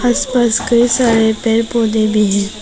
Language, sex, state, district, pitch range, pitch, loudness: Hindi, female, Arunachal Pradesh, Papum Pare, 220-240 Hz, 230 Hz, -13 LUFS